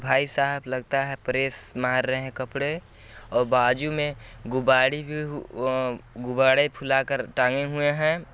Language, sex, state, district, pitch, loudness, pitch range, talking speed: Hindi, male, Chhattisgarh, Balrampur, 130 Hz, -25 LUFS, 125-140 Hz, 145 wpm